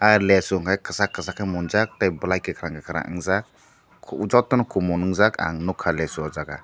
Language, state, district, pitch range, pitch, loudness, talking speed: Kokborok, Tripura, Dhalai, 85-100 Hz, 95 Hz, -23 LUFS, 160 wpm